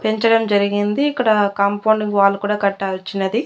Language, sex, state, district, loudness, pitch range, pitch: Telugu, female, Andhra Pradesh, Annamaya, -17 LUFS, 200-220 Hz, 205 Hz